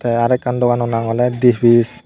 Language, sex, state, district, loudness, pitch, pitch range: Chakma, male, Tripura, Dhalai, -15 LUFS, 120 Hz, 120-125 Hz